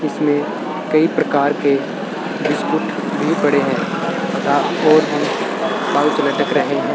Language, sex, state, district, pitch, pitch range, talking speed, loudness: Hindi, male, Rajasthan, Bikaner, 150 Hz, 145-155 Hz, 105 wpm, -17 LUFS